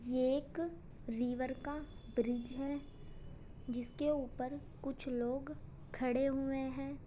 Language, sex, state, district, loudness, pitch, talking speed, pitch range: Hindi, female, Uttar Pradesh, Muzaffarnagar, -39 LUFS, 265 Hz, 110 wpm, 250-280 Hz